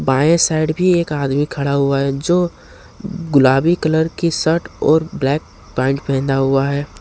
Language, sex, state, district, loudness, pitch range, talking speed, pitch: Hindi, male, Jharkhand, Ranchi, -16 LUFS, 140-165 Hz, 165 wpm, 150 Hz